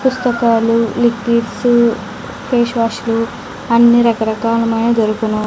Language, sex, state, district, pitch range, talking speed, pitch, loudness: Telugu, female, Andhra Pradesh, Sri Satya Sai, 225-235 Hz, 75 wpm, 230 Hz, -14 LUFS